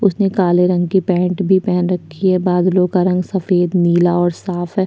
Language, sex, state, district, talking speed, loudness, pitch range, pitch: Hindi, female, Chhattisgarh, Sukma, 210 wpm, -15 LUFS, 175-190 Hz, 180 Hz